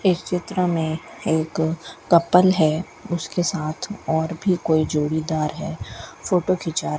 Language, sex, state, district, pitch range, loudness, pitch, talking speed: Hindi, female, Rajasthan, Bikaner, 160-180 Hz, -22 LUFS, 165 Hz, 135 wpm